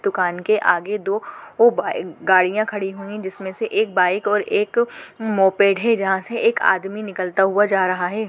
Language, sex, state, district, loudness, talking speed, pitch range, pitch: Hindi, female, Goa, North and South Goa, -19 LUFS, 175 wpm, 190-215 Hz, 200 Hz